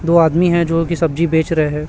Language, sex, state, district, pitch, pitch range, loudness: Hindi, male, Chhattisgarh, Raipur, 165 Hz, 160-170 Hz, -15 LUFS